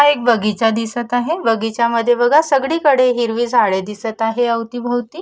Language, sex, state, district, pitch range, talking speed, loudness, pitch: Marathi, female, Maharashtra, Nagpur, 225-250 Hz, 185 wpm, -16 LUFS, 240 Hz